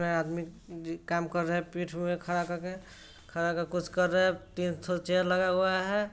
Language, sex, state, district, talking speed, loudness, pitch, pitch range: Hindi, male, Bihar, Sitamarhi, 245 wpm, -31 LUFS, 175 Hz, 170-185 Hz